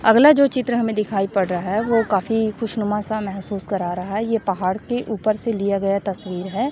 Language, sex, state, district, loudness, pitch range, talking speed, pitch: Hindi, female, Chhattisgarh, Raipur, -21 LUFS, 195-225 Hz, 225 wpm, 210 Hz